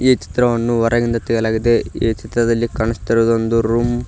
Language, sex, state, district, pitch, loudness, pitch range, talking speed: Kannada, male, Karnataka, Koppal, 115 Hz, -17 LUFS, 115-120 Hz, 160 wpm